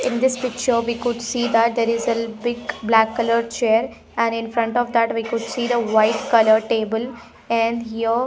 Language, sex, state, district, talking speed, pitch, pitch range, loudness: English, female, Punjab, Pathankot, 210 wpm, 230 Hz, 225-240 Hz, -20 LUFS